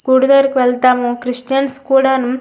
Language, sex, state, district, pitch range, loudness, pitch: Telugu, female, Andhra Pradesh, Srikakulam, 250-270 Hz, -13 LUFS, 260 Hz